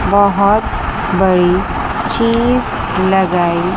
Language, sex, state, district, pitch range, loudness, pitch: Hindi, female, Chandigarh, Chandigarh, 180-210 Hz, -14 LUFS, 190 Hz